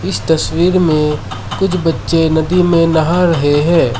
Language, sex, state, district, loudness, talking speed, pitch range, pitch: Hindi, male, Assam, Sonitpur, -13 LUFS, 150 wpm, 150-170 Hz, 160 Hz